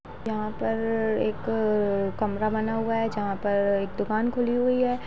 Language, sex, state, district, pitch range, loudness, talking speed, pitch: Hindi, female, Bihar, Jahanabad, 205-225 Hz, -26 LUFS, 175 wpm, 220 Hz